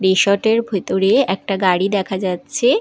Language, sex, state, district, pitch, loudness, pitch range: Bengali, female, Odisha, Malkangiri, 195 Hz, -17 LUFS, 190-205 Hz